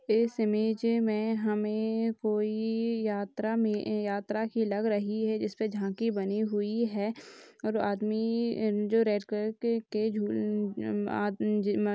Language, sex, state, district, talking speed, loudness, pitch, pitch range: Hindi, female, Chhattisgarh, Rajnandgaon, 115 wpm, -30 LUFS, 215 Hz, 205-225 Hz